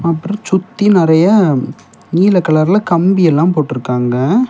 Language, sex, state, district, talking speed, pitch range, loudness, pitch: Tamil, male, Tamil Nadu, Kanyakumari, 105 wpm, 155-195 Hz, -12 LUFS, 170 Hz